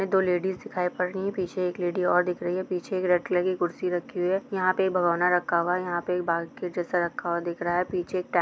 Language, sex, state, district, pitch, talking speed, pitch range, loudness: Hindi, female, Chhattisgarh, Bilaspur, 180 Hz, 290 wpm, 175-185 Hz, -27 LUFS